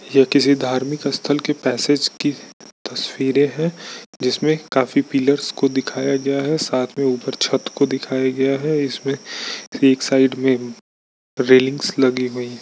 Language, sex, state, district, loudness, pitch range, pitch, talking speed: Hindi, male, Bihar, Bhagalpur, -19 LUFS, 130-140 Hz, 135 Hz, 150 wpm